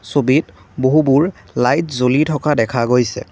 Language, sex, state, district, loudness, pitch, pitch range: Assamese, male, Assam, Kamrup Metropolitan, -16 LUFS, 130 Hz, 120-150 Hz